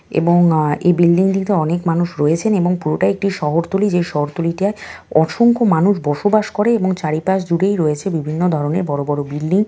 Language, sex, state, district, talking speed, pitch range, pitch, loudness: Bengali, female, West Bengal, North 24 Parganas, 175 wpm, 155-195 Hz, 175 Hz, -16 LUFS